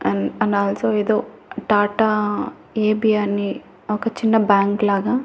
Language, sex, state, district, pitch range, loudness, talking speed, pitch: Telugu, female, Andhra Pradesh, Annamaya, 200-215 Hz, -19 LUFS, 125 wpm, 210 Hz